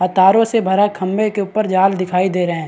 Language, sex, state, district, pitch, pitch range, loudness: Hindi, male, Chhattisgarh, Bastar, 190 Hz, 185-205 Hz, -16 LUFS